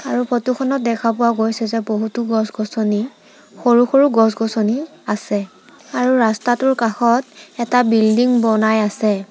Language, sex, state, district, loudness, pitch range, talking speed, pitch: Assamese, female, Assam, Sonitpur, -17 LUFS, 220-245 Hz, 120 wpm, 230 Hz